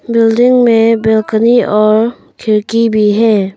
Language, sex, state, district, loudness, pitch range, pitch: Hindi, female, Arunachal Pradesh, Papum Pare, -10 LUFS, 215-230 Hz, 225 Hz